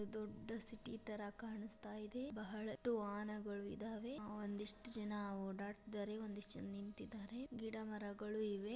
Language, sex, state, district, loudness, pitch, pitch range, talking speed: Kannada, female, Karnataka, Dharwad, -48 LUFS, 215 Hz, 205-220 Hz, 145 wpm